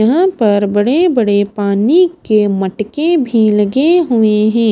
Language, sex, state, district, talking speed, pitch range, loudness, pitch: Hindi, female, Himachal Pradesh, Shimla, 140 wpm, 205-305 Hz, -12 LUFS, 220 Hz